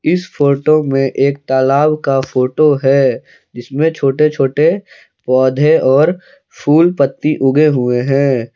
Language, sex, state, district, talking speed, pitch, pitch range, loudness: Hindi, male, Jharkhand, Palamu, 125 wpm, 140 Hz, 135-155 Hz, -13 LUFS